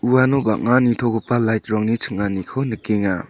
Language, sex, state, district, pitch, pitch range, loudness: Garo, male, Meghalaya, South Garo Hills, 115 Hz, 105-120 Hz, -19 LUFS